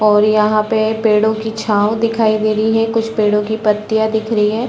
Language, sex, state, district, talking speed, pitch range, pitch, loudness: Hindi, female, Chhattisgarh, Balrampur, 215 wpm, 210-220 Hz, 220 Hz, -15 LUFS